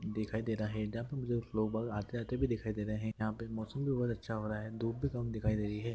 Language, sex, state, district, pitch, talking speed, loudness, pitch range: Hindi, male, Andhra Pradesh, Visakhapatnam, 110 Hz, 315 wpm, -37 LUFS, 110-120 Hz